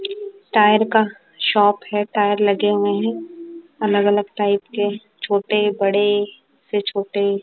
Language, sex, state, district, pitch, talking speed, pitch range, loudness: Hindi, female, Punjab, Kapurthala, 205 Hz, 130 wpm, 205-220 Hz, -19 LUFS